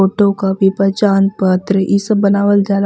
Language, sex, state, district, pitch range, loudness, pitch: Bhojpuri, female, Jharkhand, Palamu, 195-200 Hz, -13 LUFS, 200 Hz